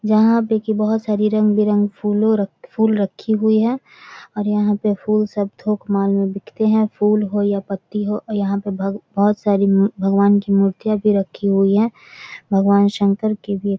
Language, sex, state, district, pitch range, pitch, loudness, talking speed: Maithili, female, Bihar, Samastipur, 200-215 Hz, 210 Hz, -18 LUFS, 180 wpm